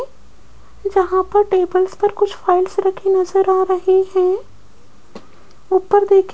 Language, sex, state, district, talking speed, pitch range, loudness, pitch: Hindi, female, Rajasthan, Jaipur, 130 wpm, 375-400 Hz, -16 LUFS, 380 Hz